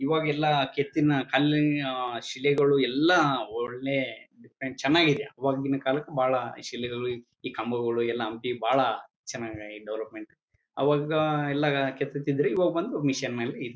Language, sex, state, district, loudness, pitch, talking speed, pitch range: Kannada, male, Karnataka, Bellary, -27 LUFS, 135 Hz, 115 wpm, 120-145 Hz